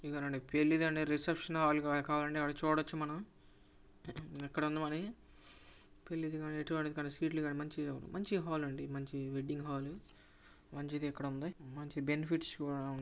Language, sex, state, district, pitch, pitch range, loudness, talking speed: Telugu, male, Andhra Pradesh, Guntur, 150 Hz, 140-155 Hz, -38 LUFS, 125 wpm